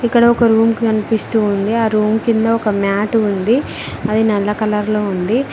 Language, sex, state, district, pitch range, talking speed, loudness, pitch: Telugu, female, Telangana, Mahabubabad, 210-230 Hz, 175 wpm, -15 LUFS, 220 Hz